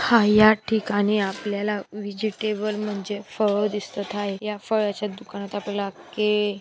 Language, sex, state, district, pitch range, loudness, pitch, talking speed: Marathi, female, Maharashtra, Dhule, 205-215 Hz, -24 LUFS, 210 Hz, 125 wpm